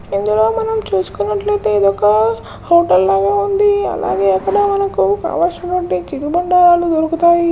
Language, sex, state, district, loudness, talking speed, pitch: Telugu, male, Telangana, Karimnagar, -14 LUFS, 120 wpm, 225 Hz